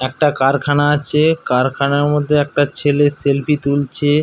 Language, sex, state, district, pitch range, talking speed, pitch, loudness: Bengali, male, West Bengal, Paschim Medinipur, 140-150 Hz, 130 wpm, 145 Hz, -15 LUFS